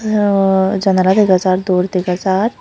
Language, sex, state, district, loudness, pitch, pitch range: Chakma, female, Tripura, Unakoti, -14 LUFS, 190 Hz, 185-200 Hz